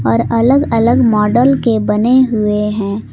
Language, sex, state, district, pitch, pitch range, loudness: Hindi, female, Jharkhand, Palamu, 220 Hz, 210-245 Hz, -12 LUFS